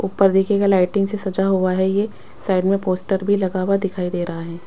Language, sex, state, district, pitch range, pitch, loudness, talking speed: Hindi, female, Bihar, West Champaran, 185-195 Hz, 190 Hz, -19 LUFS, 230 wpm